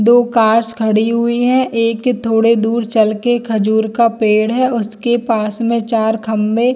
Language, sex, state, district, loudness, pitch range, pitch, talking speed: Hindi, female, Jharkhand, Jamtara, -14 LUFS, 220-235 Hz, 230 Hz, 160 wpm